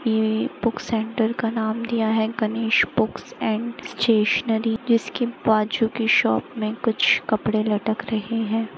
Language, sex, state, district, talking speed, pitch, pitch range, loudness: Hindi, female, Maharashtra, Pune, 145 wpm, 225 Hz, 220-230 Hz, -22 LUFS